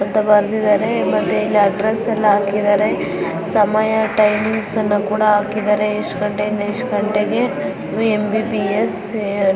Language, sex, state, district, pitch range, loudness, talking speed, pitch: Kannada, female, Karnataka, Dharwad, 205-220 Hz, -17 LUFS, 105 wpm, 210 Hz